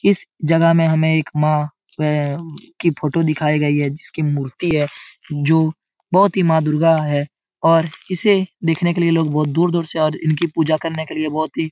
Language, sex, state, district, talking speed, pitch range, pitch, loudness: Hindi, male, Bihar, Supaul, 200 wpm, 150-165 Hz, 160 Hz, -18 LUFS